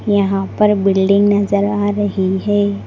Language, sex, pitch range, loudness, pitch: Hindi, female, 195-205 Hz, -15 LUFS, 200 Hz